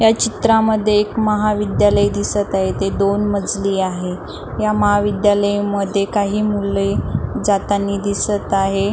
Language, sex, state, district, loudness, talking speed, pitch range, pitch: Marathi, female, Maharashtra, Nagpur, -17 LUFS, 115 wpm, 195-210 Hz, 205 Hz